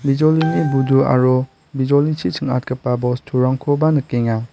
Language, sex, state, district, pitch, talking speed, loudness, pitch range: Garo, male, Meghalaya, West Garo Hills, 135 Hz, 95 wpm, -17 LUFS, 125-145 Hz